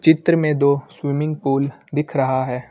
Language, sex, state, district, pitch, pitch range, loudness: Hindi, male, Uttar Pradesh, Lucknow, 140 Hz, 135-155 Hz, -20 LUFS